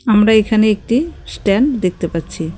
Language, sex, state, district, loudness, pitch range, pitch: Bengali, female, West Bengal, Cooch Behar, -15 LUFS, 180-225 Hz, 215 Hz